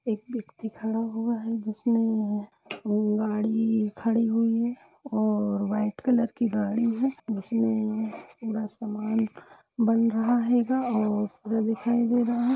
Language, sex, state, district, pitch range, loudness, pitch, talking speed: Hindi, female, Uttar Pradesh, Budaun, 215-235 Hz, -27 LUFS, 225 Hz, 155 wpm